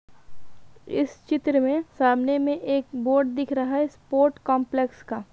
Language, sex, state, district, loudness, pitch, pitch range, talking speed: Hindi, female, Bihar, Gaya, -24 LUFS, 275 Hz, 260-285 Hz, 145 wpm